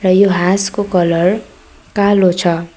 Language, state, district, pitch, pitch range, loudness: Nepali, West Bengal, Darjeeling, 185 Hz, 175-200 Hz, -13 LUFS